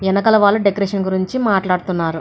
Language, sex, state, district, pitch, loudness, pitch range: Telugu, female, Andhra Pradesh, Anantapur, 195 Hz, -16 LUFS, 185-205 Hz